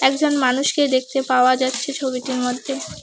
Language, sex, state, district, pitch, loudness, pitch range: Bengali, female, West Bengal, Alipurduar, 260 Hz, -19 LUFS, 255-275 Hz